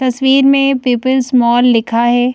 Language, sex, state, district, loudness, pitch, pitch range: Hindi, female, Madhya Pradesh, Bhopal, -12 LUFS, 250 Hz, 240-265 Hz